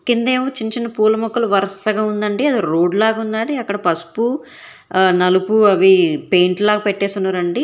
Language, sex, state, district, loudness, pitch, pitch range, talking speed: Telugu, female, Telangana, Hyderabad, -16 LUFS, 210 Hz, 190-225 Hz, 125 wpm